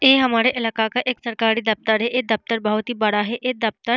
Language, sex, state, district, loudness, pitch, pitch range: Hindi, female, Bihar, Vaishali, -20 LUFS, 230 Hz, 220-250 Hz